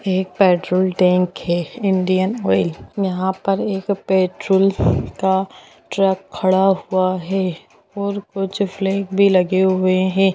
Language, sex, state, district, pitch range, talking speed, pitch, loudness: Hindi, female, Bihar, Sitamarhi, 185-195 Hz, 125 wpm, 190 Hz, -18 LUFS